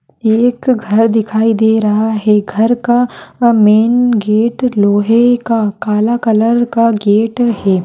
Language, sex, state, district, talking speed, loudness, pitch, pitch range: Hindi, female, Maharashtra, Solapur, 130 wpm, -12 LUFS, 225 Hz, 210-235 Hz